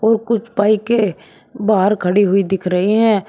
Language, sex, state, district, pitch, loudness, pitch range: Hindi, male, Uttar Pradesh, Shamli, 210 Hz, -16 LUFS, 195-220 Hz